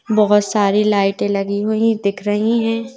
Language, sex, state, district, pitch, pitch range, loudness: Hindi, female, Madhya Pradesh, Bhopal, 210 Hz, 200-220 Hz, -17 LUFS